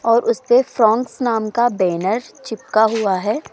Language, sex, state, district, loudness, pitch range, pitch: Hindi, female, Rajasthan, Jaipur, -17 LUFS, 215-240 Hz, 230 Hz